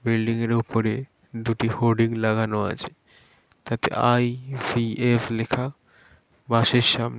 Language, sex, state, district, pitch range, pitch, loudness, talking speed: Bengali, male, West Bengal, Dakshin Dinajpur, 115-120 Hz, 115 Hz, -23 LUFS, 140 wpm